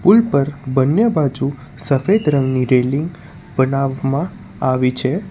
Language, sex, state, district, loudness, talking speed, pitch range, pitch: Gujarati, male, Gujarat, Valsad, -17 LUFS, 115 wpm, 130-155 Hz, 140 Hz